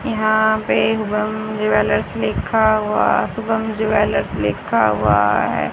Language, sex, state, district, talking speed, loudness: Hindi, female, Haryana, Rohtak, 115 wpm, -18 LUFS